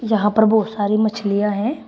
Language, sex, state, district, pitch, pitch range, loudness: Hindi, female, Uttar Pradesh, Shamli, 215 Hz, 205-220 Hz, -18 LUFS